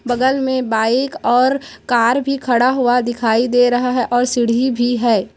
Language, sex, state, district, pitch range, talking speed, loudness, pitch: Hindi, female, Chhattisgarh, Korba, 240-260 Hz, 180 wpm, -16 LUFS, 245 Hz